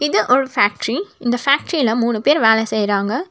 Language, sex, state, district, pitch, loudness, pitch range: Tamil, female, Tamil Nadu, Nilgiris, 240 Hz, -17 LUFS, 220-285 Hz